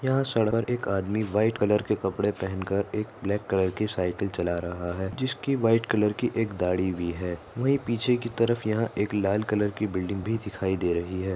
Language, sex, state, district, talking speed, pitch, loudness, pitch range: Hindi, male, Maharashtra, Nagpur, 220 wpm, 105 Hz, -27 LUFS, 95-115 Hz